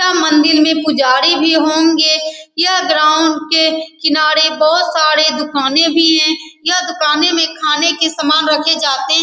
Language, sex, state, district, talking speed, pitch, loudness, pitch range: Hindi, female, Bihar, Saran, 155 wpm, 315 Hz, -12 LUFS, 305-320 Hz